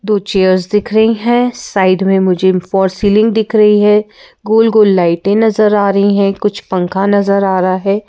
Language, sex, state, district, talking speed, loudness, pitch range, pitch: Hindi, female, Madhya Pradesh, Bhopal, 195 wpm, -11 LUFS, 190-215 Hz, 200 Hz